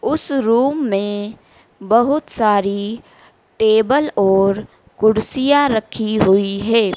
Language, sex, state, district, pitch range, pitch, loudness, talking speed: Hindi, female, Madhya Pradesh, Dhar, 200-265 Hz, 220 Hz, -16 LUFS, 95 wpm